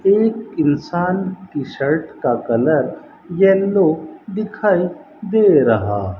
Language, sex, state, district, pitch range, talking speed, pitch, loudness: Hindi, male, Rajasthan, Bikaner, 150-205 Hz, 105 wpm, 185 Hz, -17 LUFS